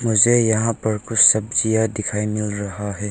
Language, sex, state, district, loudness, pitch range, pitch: Hindi, male, Arunachal Pradesh, Longding, -17 LUFS, 105-115 Hz, 110 Hz